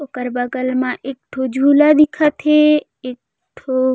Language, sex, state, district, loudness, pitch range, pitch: Chhattisgarhi, female, Chhattisgarh, Raigarh, -15 LUFS, 255-300 Hz, 265 Hz